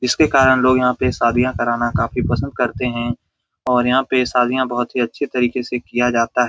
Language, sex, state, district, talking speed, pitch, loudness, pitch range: Hindi, male, Bihar, Saran, 215 wpm, 125 Hz, -18 LUFS, 120-130 Hz